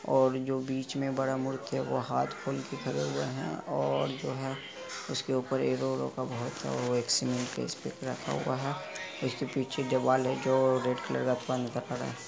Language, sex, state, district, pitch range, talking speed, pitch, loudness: Hindi, male, Bihar, Araria, 120-130 Hz, 170 wpm, 130 Hz, -32 LUFS